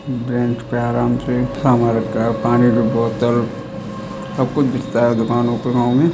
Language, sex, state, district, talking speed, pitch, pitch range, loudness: Hindi, male, Uttar Pradesh, Budaun, 175 wpm, 120 Hz, 115-125 Hz, -17 LUFS